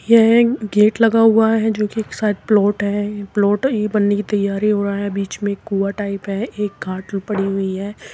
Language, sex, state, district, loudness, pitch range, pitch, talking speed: Hindi, female, Uttar Pradesh, Muzaffarnagar, -18 LUFS, 200-215 Hz, 205 Hz, 230 wpm